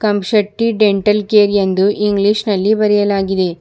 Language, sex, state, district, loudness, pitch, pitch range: Kannada, female, Karnataka, Bidar, -14 LUFS, 205 Hz, 200-210 Hz